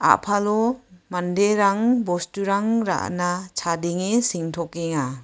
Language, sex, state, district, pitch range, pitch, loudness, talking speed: Garo, female, Meghalaya, West Garo Hills, 175-210 Hz, 185 Hz, -22 LUFS, 70 wpm